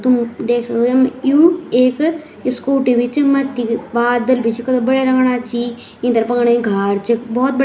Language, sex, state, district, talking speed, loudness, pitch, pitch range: Garhwali, male, Uttarakhand, Tehri Garhwal, 195 wpm, -16 LUFS, 245 Hz, 235-265 Hz